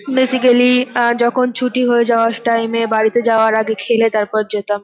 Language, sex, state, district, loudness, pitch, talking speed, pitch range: Bengali, female, West Bengal, North 24 Parganas, -15 LUFS, 230 Hz, 185 wpm, 220-250 Hz